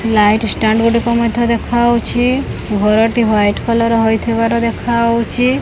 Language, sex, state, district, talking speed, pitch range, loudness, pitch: Odia, female, Odisha, Khordha, 105 wpm, 220-235 Hz, -14 LUFS, 230 Hz